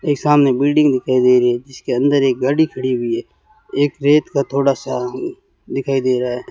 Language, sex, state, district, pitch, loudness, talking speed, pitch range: Hindi, male, Rajasthan, Bikaner, 135 Hz, -17 LUFS, 210 wpm, 125-145 Hz